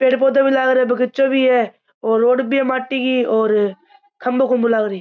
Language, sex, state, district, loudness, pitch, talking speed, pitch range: Marwari, male, Rajasthan, Churu, -17 LUFS, 255 Hz, 215 wpm, 230-265 Hz